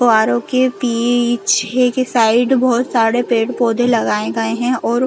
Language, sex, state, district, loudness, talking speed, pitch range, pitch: Hindi, female, Chhattisgarh, Balrampur, -15 LUFS, 180 wpm, 230-250 Hz, 240 Hz